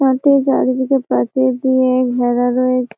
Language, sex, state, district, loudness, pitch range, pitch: Bengali, female, West Bengal, Malda, -15 LUFS, 250-265 Hz, 255 Hz